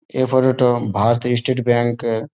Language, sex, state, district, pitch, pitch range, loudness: Bengali, male, West Bengal, Malda, 120 Hz, 120-130 Hz, -18 LUFS